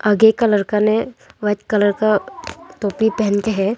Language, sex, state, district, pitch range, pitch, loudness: Hindi, female, Arunachal Pradesh, Longding, 205-220 Hz, 210 Hz, -17 LUFS